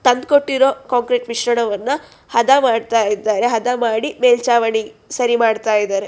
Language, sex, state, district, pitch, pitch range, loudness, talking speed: Kannada, female, Karnataka, Shimoga, 235 Hz, 225-255 Hz, -16 LUFS, 120 wpm